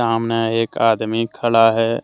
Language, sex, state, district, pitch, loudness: Hindi, male, Jharkhand, Deoghar, 115 Hz, -17 LUFS